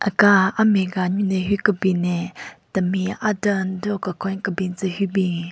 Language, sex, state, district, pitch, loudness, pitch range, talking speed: Rengma, female, Nagaland, Kohima, 190 Hz, -21 LUFS, 185-200 Hz, 175 wpm